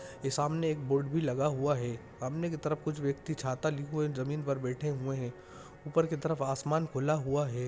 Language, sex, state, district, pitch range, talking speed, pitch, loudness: Hindi, male, Chhattisgarh, Bastar, 135-155 Hz, 220 wpm, 145 Hz, -33 LUFS